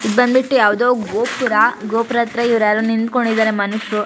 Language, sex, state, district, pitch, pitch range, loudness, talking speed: Kannada, female, Karnataka, Shimoga, 230 Hz, 215-245 Hz, -16 LUFS, 150 wpm